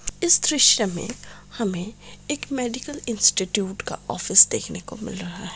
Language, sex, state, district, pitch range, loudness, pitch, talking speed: Hindi, female, Bihar, Sitamarhi, 185-260 Hz, -20 LUFS, 220 Hz, 150 wpm